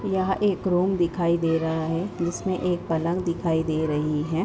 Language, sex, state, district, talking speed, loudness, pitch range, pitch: Hindi, female, Uttar Pradesh, Hamirpur, 190 wpm, -25 LUFS, 160-185 Hz, 170 Hz